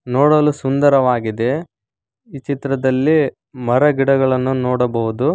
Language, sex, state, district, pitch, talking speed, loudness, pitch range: Kannada, male, Karnataka, Koppal, 130 Hz, 65 wpm, -16 LUFS, 125-140 Hz